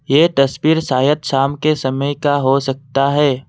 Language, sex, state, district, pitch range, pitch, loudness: Hindi, male, Assam, Kamrup Metropolitan, 135-150 Hz, 140 Hz, -16 LUFS